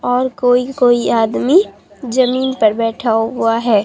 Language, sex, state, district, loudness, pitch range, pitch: Hindi, male, Bihar, Katihar, -14 LUFS, 225-255 Hz, 245 Hz